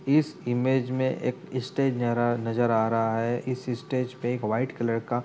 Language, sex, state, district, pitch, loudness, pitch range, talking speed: Hindi, male, Uttar Pradesh, Etah, 125 Hz, -27 LUFS, 120-130 Hz, 205 wpm